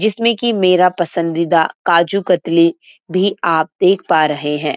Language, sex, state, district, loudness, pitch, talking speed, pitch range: Hindi, female, Uttarakhand, Uttarkashi, -15 LUFS, 175 Hz, 150 wpm, 165-190 Hz